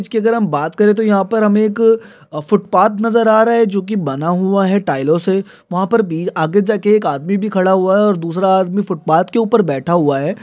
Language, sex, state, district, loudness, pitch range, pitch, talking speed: Hindi, male, Bihar, Sitamarhi, -14 LUFS, 175-215 Hz, 195 Hz, 235 wpm